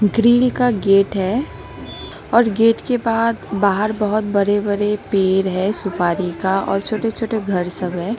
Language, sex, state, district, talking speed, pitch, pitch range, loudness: Hindi, female, West Bengal, Alipurduar, 160 wpm, 205 Hz, 195-225 Hz, -18 LUFS